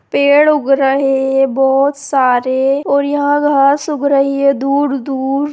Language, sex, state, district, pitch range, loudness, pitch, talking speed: Hindi, female, Bihar, Sitamarhi, 270-285 Hz, -13 LUFS, 275 Hz, 140 wpm